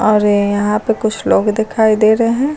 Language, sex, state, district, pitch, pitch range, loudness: Hindi, female, Uttar Pradesh, Lucknow, 215 Hz, 210-225 Hz, -14 LUFS